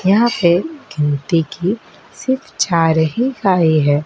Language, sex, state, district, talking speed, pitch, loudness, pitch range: Hindi, male, Madhya Pradesh, Dhar, 135 wpm, 175 Hz, -16 LUFS, 160-235 Hz